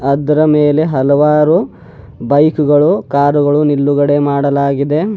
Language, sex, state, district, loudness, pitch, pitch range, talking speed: Kannada, male, Karnataka, Bidar, -12 LUFS, 145 Hz, 140-150 Hz, 105 wpm